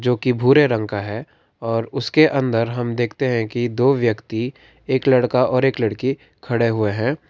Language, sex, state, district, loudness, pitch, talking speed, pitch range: Hindi, male, Karnataka, Bangalore, -19 LUFS, 120 Hz, 190 wpm, 115-130 Hz